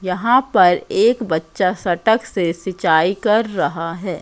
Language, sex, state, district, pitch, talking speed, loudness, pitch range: Hindi, female, Madhya Pradesh, Katni, 185 Hz, 140 wpm, -17 LUFS, 170-225 Hz